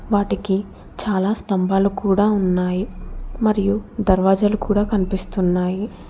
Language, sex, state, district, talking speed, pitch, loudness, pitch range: Telugu, female, Telangana, Hyderabad, 90 wpm, 200 Hz, -20 LUFS, 190-210 Hz